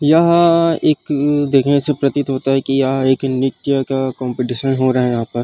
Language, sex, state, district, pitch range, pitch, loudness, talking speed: Chhattisgarhi, male, Chhattisgarh, Rajnandgaon, 130-145 Hz, 135 Hz, -16 LUFS, 210 wpm